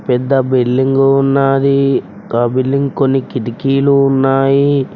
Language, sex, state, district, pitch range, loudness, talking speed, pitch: Telugu, male, Telangana, Mahabubabad, 130-140 Hz, -13 LUFS, 95 wpm, 135 Hz